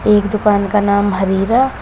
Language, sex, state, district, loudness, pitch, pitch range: Hindi, female, Uttar Pradesh, Shamli, -14 LUFS, 205 Hz, 200-210 Hz